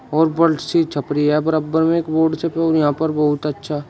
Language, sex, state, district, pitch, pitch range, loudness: Hindi, male, Uttar Pradesh, Shamli, 155 Hz, 150-160 Hz, -18 LUFS